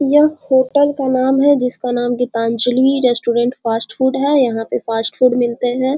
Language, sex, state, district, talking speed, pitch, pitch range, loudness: Hindi, female, Bihar, Muzaffarpur, 190 wpm, 255 Hz, 240-270 Hz, -15 LUFS